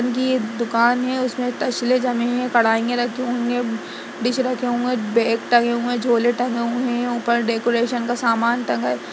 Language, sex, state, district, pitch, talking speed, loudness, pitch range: Hindi, female, Chhattisgarh, Sarguja, 240 Hz, 185 wpm, -20 LUFS, 235-245 Hz